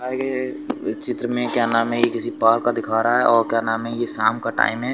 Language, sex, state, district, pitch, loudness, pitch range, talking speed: Hindi, male, Uttar Pradesh, Lucknow, 115 Hz, -20 LUFS, 115-125 Hz, 265 wpm